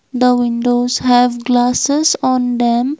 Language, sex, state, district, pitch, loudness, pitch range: English, female, Assam, Kamrup Metropolitan, 245 Hz, -14 LUFS, 245-255 Hz